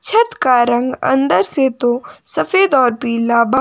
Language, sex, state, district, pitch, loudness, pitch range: Hindi, female, Himachal Pradesh, Shimla, 255 Hz, -15 LUFS, 240-275 Hz